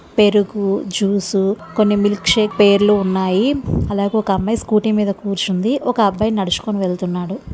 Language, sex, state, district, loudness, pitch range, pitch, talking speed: Telugu, female, Andhra Pradesh, Visakhapatnam, -17 LUFS, 195-215 Hz, 205 Hz, 135 wpm